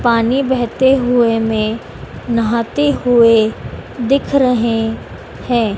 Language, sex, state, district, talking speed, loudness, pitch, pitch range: Hindi, female, Madhya Pradesh, Dhar, 95 wpm, -14 LUFS, 235 Hz, 225-260 Hz